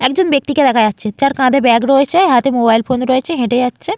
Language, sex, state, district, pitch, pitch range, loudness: Bengali, female, West Bengal, Jalpaiguri, 255 Hz, 240-280 Hz, -13 LUFS